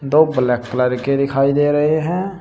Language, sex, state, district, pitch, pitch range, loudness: Hindi, male, Uttar Pradesh, Shamli, 140 Hz, 130-155 Hz, -17 LUFS